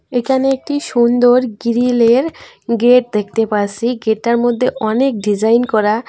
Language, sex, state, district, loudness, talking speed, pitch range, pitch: Bengali, female, West Bengal, Cooch Behar, -14 LUFS, 140 wpm, 220-250 Hz, 240 Hz